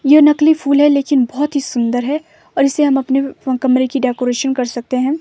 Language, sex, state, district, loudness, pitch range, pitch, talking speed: Hindi, female, Himachal Pradesh, Shimla, -15 LUFS, 255-295 Hz, 275 Hz, 220 wpm